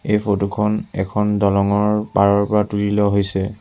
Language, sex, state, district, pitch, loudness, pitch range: Assamese, male, Assam, Sonitpur, 105 Hz, -18 LUFS, 100-105 Hz